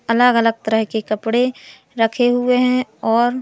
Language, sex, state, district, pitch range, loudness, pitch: Hindi, female, Madhya Pradesh, Katni, 225-250 Hz, -17 LUFS, 235 Hz